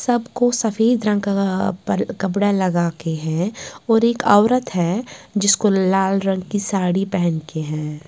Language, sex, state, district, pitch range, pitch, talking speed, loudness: Hindi, female, Bihar, West Champaran, 180-215 Hz, 195 Hz, 155 wpm, -19 LUFS